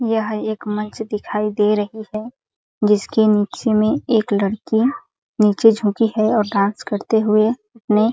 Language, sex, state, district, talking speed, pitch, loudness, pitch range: Hindi, female, Chhattisgarh, Sarguja, 155 wpm, 215 Hz, -18 LUFS, 210-225 Hz